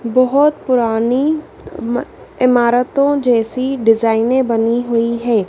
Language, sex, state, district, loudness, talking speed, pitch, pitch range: Hindi, female, Madhya Pradesh, Dhar, -15 LUFS, 90 wpm, 245 Hz, 230-260 Hz